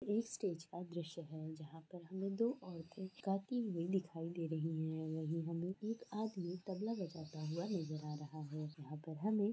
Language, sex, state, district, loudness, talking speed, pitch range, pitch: Hindi, female, Rajasthan, Nagaur, -44 LUFS, 195 wpm, 160-195 Hz, 170 Hz